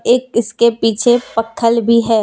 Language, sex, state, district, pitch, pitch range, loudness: Hindi, female, Jharkhand, Deoghar, 230 Hz, 225-240 Hz, -14 LUFS